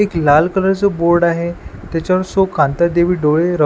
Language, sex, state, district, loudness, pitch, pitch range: Marathi, male, Maharashtra, Washim, -15 LUFS, 170 Hz, 165-185 Hz